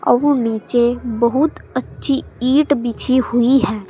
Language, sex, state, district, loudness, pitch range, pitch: Hindi, female, Uttar Pradesh, Saharanpur, -17 LUFS, 235-275 Hz, 245 Hz